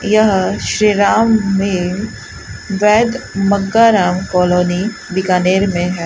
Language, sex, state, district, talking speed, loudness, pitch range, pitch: Hindi, male, Rajasthan, Bikaner, 100 wpm, -14 LUFS, 180-210 Hz, 195 Hz